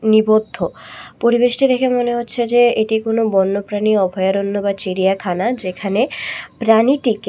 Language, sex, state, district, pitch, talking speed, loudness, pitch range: Bengali, female, Tripura, West Tripura, 220 Hz, 115 wpm, -17 LUFS, 200-240 Hz